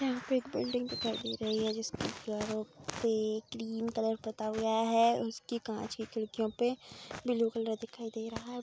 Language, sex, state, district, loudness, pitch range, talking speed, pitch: Hindi, female, Bihar, Saharsa, -35 LUFS, 215-230 Hz, 190 wpm, 225 Hz